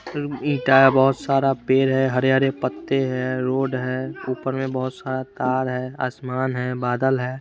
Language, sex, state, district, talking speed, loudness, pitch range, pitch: Hindi, male, Chandigarh, Chandigarh, 170 wpm, -21 LUFS, 130-135 Hz, 130 Hz